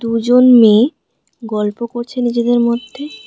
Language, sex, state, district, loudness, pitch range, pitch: Bengali, female, West Bengal, Alipurduar, -13 LUFS, 230-250 Hz, 235 Hz